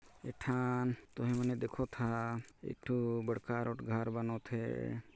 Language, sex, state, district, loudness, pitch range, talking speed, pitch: Chhattisgarhi, male, Chhattisgarh, Jashpur, -38 LUFS, 115-125 Hz, 165 wpm, 115 Hz